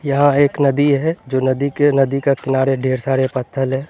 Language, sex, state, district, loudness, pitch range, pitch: Hindi, male, Bihar, Katihar, -17 LUFS, 130-145 Hz, 135 Hz